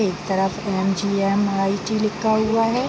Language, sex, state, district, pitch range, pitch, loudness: Hindi, female, Bihar, Araria, 195-215 Hz, 200 Hz, -21 LUFS